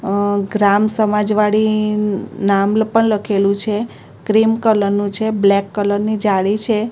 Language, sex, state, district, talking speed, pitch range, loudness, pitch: Gujarati, female, Gujarat, Gandhinagar, 145 wpm, 200-215 Hz, -16 LUFS, 210 Hz